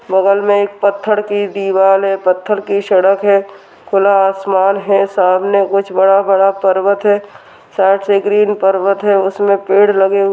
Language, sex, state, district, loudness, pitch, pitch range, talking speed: Hindi, female, Uttarakhand, Tehri Garhwal, -12 LUFS, 195 Hz, 195-200 Hz, 170 wpm